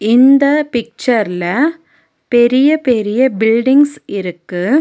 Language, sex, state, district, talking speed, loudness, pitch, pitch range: Tamil, female, Tamil Nadu, Nilgiris, 75 wpm, -13 LUFS, 245 Hz, 220-285 Hz